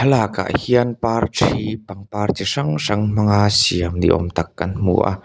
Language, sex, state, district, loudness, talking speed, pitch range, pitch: Mizo, male, Mizoram, Aizawl, -18 LUFS, 170 wpm, 95-115 Hz, 105 Hz